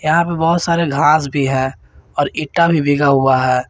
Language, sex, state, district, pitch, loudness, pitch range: Hindi, male, Jharkhand, Garhwa, 145 Hz, -15 LUFS, 135-165 Hz